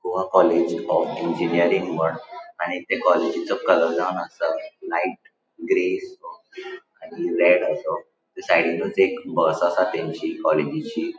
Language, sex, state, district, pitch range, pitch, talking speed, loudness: Konkani, male, Goa, North and South Goa, 340-435 Hz, 370 Hz, 130 wpm, -22 LUFS